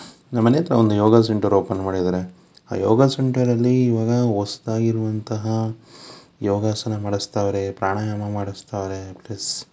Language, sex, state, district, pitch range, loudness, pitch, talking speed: Kannada, male, Karnataka, Bangalore, 100-115 Hz, -21 LUFS, 105 Hz, 125 wpm